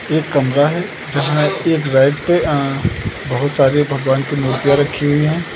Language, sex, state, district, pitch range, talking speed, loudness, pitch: Hindi, male, Uttar Pradesh, Lucknow, 135-155 Hz, 175 wpm, -16 LUFS, 145 Hz